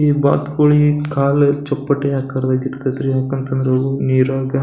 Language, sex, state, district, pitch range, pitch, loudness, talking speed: Kannada, male, Karnataka, Belgaum, 130-145 Hz, 135 Hz, -17 LUFS, 115 wpm